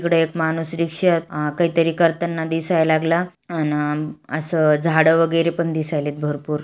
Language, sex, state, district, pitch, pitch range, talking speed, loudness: Marathi, female, Maharashtra, Aurangabad, 160 Hz, 150-170 Hz, 155 wpm, -20 LUFS